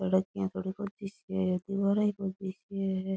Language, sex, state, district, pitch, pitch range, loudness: Rajasthani, female, Rajasthan, Nagaur, 190 Hz, 190-200 Hz, -32 LUFS